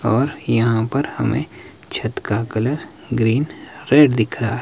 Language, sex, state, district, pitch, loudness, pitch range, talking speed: Hindi, male, Himachal Pradesh, Shimla, 115 Hz, -19 LUFS, 115-140 Hz, 155 wpm